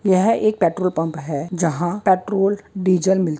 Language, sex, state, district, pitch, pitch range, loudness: Hindi, male, West Bengal, Kolkata, 185 Hz, 165-195 Hz, -19 LUFS